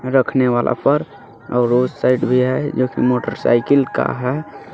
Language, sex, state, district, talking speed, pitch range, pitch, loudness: Hindi, male, Jharkhand, Garhwa, 140 wpm, 125-130 Hz, 125 Hz, -17 LUFS